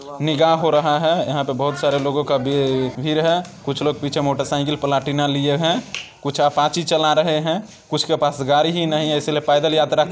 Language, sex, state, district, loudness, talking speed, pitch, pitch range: Maithili, male, Bihar, Samastipur, -19 LUFS, 230 wpm, 150 Hz, 140-155 Hz